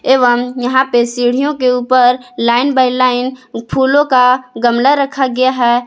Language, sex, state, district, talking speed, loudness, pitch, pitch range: Hindi, female, Jharkhand, Palamu, 155 wpm, -12 LUFS, 250 Hz, 245-260 Hz